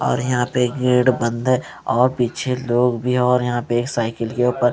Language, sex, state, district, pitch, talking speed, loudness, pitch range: Hindi, male, Punjab, Fazilka, 125 Hz, 215 wpm, -19 LUFS, 120-125 Hz